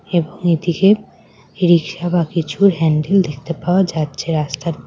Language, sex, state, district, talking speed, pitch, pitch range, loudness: Bengali, female, West Bengal, Cooch Behar, 125 wpm, 170 Hz, 155-180 Hz, -17 LUFS